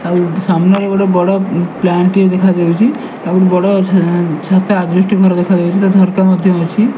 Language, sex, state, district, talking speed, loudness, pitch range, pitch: Odia, male, Odisha, Malkangiri, 165 wpm, -12 LUFS, 175-195 Hz, 185 Hz